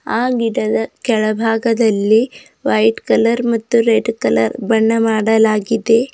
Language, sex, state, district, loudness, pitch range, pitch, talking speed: Kannada, female, Karnataka, Bidar, -15 LUFS, 215-230 Hz, 225 Hz, 100 wpm